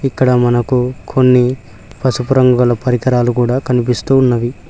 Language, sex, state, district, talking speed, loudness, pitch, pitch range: Telugu, male, Telangana, Mahabubabad, 115 wpm, -13 LUFS, 125 Hz, 120-130 Hz